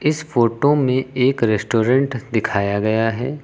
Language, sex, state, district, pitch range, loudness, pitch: Hindi, female, Uttar Pradesh, Lucknow, 110-135 Hz, -18 LUFS, 125 Hz